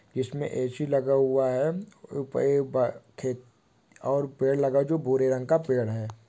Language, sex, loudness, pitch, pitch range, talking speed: Hindi, male, -27 LUFS, 135 Hz, 125-140 Hz, 145 wpm